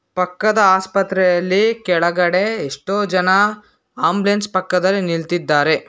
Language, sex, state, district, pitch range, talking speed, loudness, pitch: Kannada, male, Karnataka, Bangalore, 180-205 Hz, 80 wpm, -17 LUFS, 190 Hz